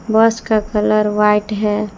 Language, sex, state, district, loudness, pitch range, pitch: Hindi, female, Jharkhand, Palamu, -15 LUFS, 210-220 Hz, 210 Hz